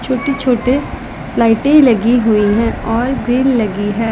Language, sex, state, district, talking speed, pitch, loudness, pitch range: Hindi, female, Punjab, Pathankot, 145 wpm, 240 Hz, -13 LUFS, 225-260 Hz